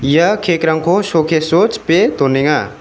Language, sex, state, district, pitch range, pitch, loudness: Garo, male, Meghalaya, West Garo Hills, 150-170 Hz, 160 Hz, -13 LUFS